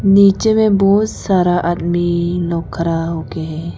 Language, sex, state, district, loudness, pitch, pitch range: Hindi, female, Arunachal Pradesh, Papum Pare, -15 LUFS, 175 Hz, 165-195 Hz